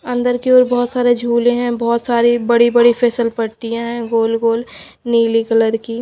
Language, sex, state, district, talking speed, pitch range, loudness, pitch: Hindi, female, Punjab, Pathankot, 190 wpm, 230-240 Hz, -15 LUFS, 235 Hz